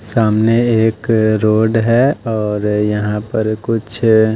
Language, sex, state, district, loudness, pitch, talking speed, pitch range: Hindi, male, Odisha, Nuapada, -14 LUFS, 110 Hz, 110 wpm, 105-115 Hz